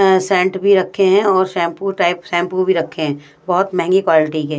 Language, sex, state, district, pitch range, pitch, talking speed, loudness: Hindi, female, Odisha, Sambalpur, 165-190 Hz, 185 Hz, 210 wpm, -15 LUFS